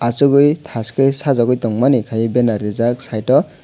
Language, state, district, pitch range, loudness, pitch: Kokborok, Tripura, West Tripura, 115-135 Hz, -16 LUFS, 120 Hz